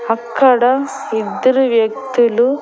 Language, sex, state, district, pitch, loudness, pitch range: Telugu, female, Andhra Pradesh, Annamaya, 245 Hz, -15 LUFS, 230-265 Hz